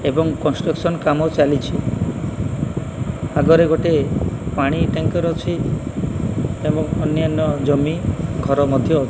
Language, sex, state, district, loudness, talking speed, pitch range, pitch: Odia, male, Odisha, Malkangiri, -19 LUFS, 100 wpm, 140-160 Hz, 155 Hz